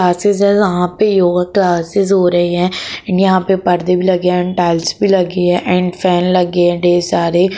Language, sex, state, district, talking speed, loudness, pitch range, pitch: Hindi, female, Jharkhand, Jamtara, 180 wpm, -13 LUFS, 175-190 Hz, 180 Hz